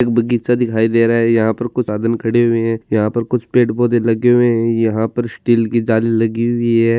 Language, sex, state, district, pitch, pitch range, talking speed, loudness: Marwari, male, Rajasthan, Churu, 115 Hz, 115-120 Hz, 230 wpm, -15 LUFS